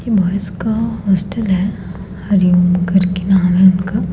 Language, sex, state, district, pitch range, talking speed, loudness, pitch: Hindi, female, Madhya Pradesh, Bhopal, 180-200 Hz, 145 wpm, -15 LUFS, 190 Hz